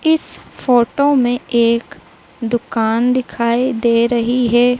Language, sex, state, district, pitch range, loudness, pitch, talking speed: Hindi, female, Madhya Pradesh, Dhar, 235-250 Hz, -16 LUFS, 240 Hz, 110 wpm